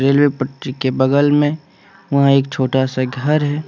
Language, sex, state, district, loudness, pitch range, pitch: Hindi, male, Jharkhand, Deoghar, -16 LUFS, 130-145 Hz, 140 Hz